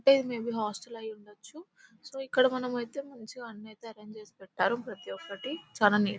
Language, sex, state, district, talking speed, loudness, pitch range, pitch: Telugu, female, Telangana, Nalgonda, 175 wpm, -31 LUFS, 210-260 Hz, 230 Hz